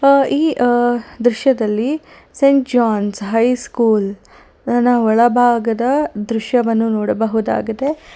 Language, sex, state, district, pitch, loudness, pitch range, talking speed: Kannada, female, Karnataka, Bangalore, 240 Hz, -16 LUFS, 225-260 Hz, 90 wpm